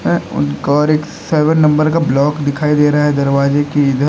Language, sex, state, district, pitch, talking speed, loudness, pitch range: Hindi, male, Uttar Pradesh, Lalitpur, 145 Hz, 190 wpm, -14 LUFS, 140-150 Hz